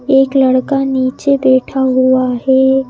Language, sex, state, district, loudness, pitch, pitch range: Hindi, female, Madhya Pradesh, Bhopal, -12 LUFS, 265 Hz, 255-270 Hz